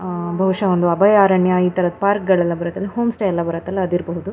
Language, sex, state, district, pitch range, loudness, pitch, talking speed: Kannada, female, Karnataka, Shimoga, 175-195 Hz, -17 LUFS, 185 Hz, 195 wpm